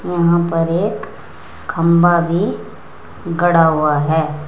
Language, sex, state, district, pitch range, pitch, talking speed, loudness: Hindi, female, Uttar Pradesh, Saharanpur, 155-170 Hz, 165 Hz, 105 wpm, -15 LUFS